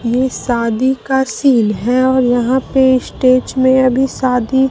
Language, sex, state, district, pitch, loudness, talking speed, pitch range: Hindi, female, Bihar, Katihar, 255 Hz, -14 LUFS, 155 wpm, 245-265 Hz